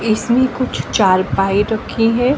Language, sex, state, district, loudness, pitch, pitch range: Hindi, female, Haryana, Jhajjar, -16 LUFS, 225 Hz, 205-250 Hz